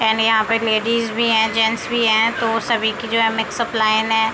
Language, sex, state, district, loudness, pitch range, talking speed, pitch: Hindi, female, Uttar Pradesh, Deoria, -17 LUFS, 220-230 Hz, 235 wpm, 225 Hz